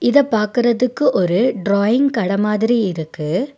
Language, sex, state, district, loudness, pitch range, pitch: Tamil, female, Tamil Nadu, Nilgiris, -17 LUFS, 200-250 Hz, 225 Hz